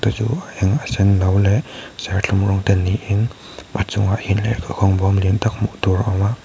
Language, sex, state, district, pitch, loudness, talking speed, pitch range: Mizo, male, Mizoram, Aizawl, 100 Hz, -18 LUFS, 225 wpm, 95-110 Hz